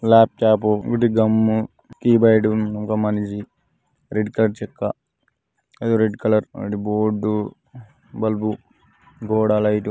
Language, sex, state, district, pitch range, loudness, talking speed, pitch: Telugu, male, Telangana, Nalgonda, 105-110 Hz, -20 LUFS, 90 wpm, 110 Hz